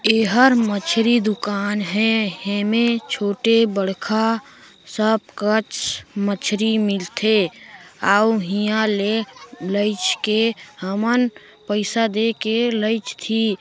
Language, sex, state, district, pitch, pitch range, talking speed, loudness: Chhattisgarhi, female, Chhattisgarh, Sarguja, 215 Hz, 200-225 Hz, 95 wpm, -20 LUFS